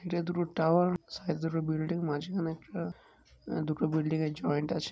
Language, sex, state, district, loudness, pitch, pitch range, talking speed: Bengali, male, West Bengal, Kolkata, -32 LUFS, 165 Hz, 155-175 Hz, 185 wpm